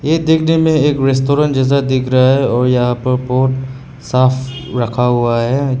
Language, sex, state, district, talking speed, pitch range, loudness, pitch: Hindi, male, Meghalaya, West Garo Hills, 155 wpm, 125-140 Hz, -14 LUFS, 130 Hz